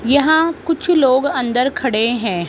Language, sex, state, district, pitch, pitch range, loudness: Hindi, female, Rajasthan, Jaipur, 270 Hz, 240-315 Hz, -16 LUFS